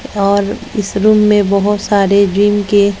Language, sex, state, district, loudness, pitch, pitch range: Hindi, female, Bihar, West Champaran, -12 LUFS, 205 Hz, 200-210 Hz